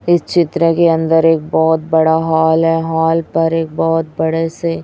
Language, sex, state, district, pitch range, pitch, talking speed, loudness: Hindi, female, Chhattisgarh, Raipur, 160-165 Hz, 165 Hz, 185 wpm, -14 LUFS